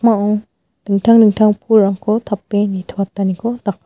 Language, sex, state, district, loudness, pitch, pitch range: Garo, female, Meghalaya, West Garo Hills, -15 LUFS, 205 Hz, 200-220 Hz